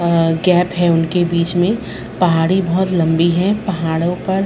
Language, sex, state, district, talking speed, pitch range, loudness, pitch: Hindi, female, Chhattisgarh, Rajnandgaon, 160 wpm, 170-185 Hz, -16 LUFS, 175 Hz